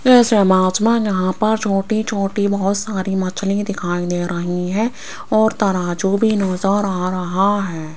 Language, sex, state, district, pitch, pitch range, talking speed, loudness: Hindi, female, Rajasthan, Jaipur, 195 Hz, 185-215 Hz, 160 wpm, -18 LUFS